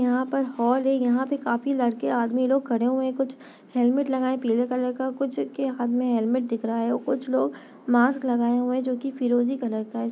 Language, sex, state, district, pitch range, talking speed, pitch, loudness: Hindi, female, Chhattisgarh, Bastar, 240-265 Hz, 225 wpm, 250 Hz, -25 LUFS